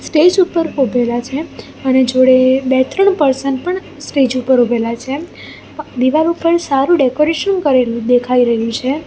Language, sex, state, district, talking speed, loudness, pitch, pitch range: Gujarati, female, Gujarat, Gandhinagar, 150 wpm, -14 LUFS, 270 Hz, 255-315 Hz